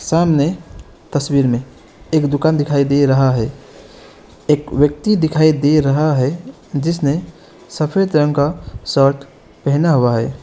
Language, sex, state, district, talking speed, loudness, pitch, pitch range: Hindi, male, West Bengal, Alipurduar, 130 wpm, -16 LUFS, 145 Hz, 135-155 Hz